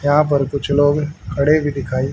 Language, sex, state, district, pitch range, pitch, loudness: Hindi, male, Haryana, Rohtak, 135-145 Hz, 145 Hz, -17 LUFS